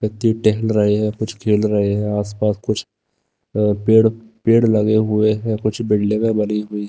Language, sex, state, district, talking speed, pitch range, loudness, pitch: Hindi, male, Bihar, Katihar, 175 wpm, 105-110 Hz, -18 LUFS, 105 Hz